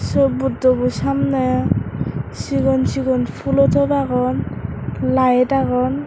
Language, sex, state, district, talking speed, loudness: Chakma, female, Tripura, West Tripura, 100 wpm, -18 LUFS